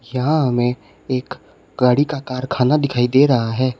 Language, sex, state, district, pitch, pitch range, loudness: Hindi, male, Uttar Pradesh, Shamli, 125 Hz, 125-135 Hz, -18 LUFS